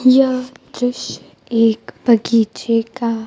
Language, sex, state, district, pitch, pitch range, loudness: Hindi, female, Bihar, Kaimur, 235 Hz, 230-255 Hz, -17 LUFS